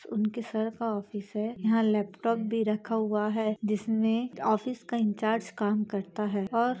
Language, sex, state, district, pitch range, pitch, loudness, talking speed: Hindi, female, Chhattisgarh, Bastar, 210-225 Hz, 220 Hz, -29 LUFS, 165 wpm